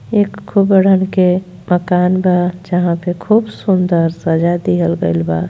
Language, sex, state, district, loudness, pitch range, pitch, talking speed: Bhojpuri, female, Uttar Pradesh, Gorakhpur, -14 LUFS, 170-190 Hz, 180 Hz, 140 wpm